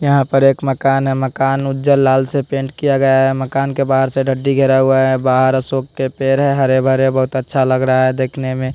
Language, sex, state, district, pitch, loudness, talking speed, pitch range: Hindi, male, Bihar, West Champaran, 135 Hz, -15 LUFS, 240 wpm, 130-135 Hz